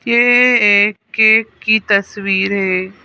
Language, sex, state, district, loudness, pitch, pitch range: Hindi, female, Madhya Pradesh, Bhopal, -12 LUFS, 210 Hz, 200-220 Hz